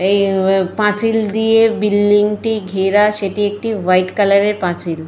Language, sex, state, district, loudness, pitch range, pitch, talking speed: Bengali, female, Jharkhand, Jamtara, -15 LUFS, 190-210 Hz, 205 Hz, 120 wpm